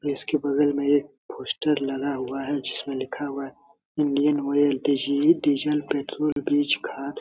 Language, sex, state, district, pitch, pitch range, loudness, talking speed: Hindi, male, Bihar, Supaul, 145 Hz, 140-150 Hz, -24 LUFS, 160 wpm